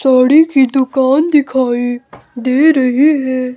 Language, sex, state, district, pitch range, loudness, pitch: Hindi, male, Himachal Pradesh, Shimla, 255-290 Hz, -12 LUFS, 265 Hz